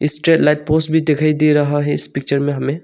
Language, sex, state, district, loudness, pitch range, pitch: Hindi, male, Arunachal Pradesh, Longding, -15 LUFS, 145-155 Hz, 150 Hz